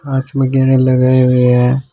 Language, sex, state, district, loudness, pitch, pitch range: Rajasthani, male, Rajasthan, Churu, -12 LUFS, 130 Hz, 125-135 Hz